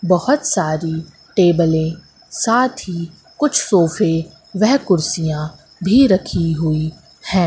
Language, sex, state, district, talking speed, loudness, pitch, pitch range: Hindi, female, Madhya Pradesh, Katni, 105 wpm, -17 LUFS, 175 Hz, 160-215 Hz